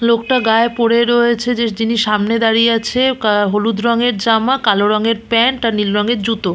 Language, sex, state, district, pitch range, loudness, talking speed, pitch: Bengali, female, West Bengal, Purulia, 215-235 Hz, -14 LUFS, 185 wpm, 230 Hz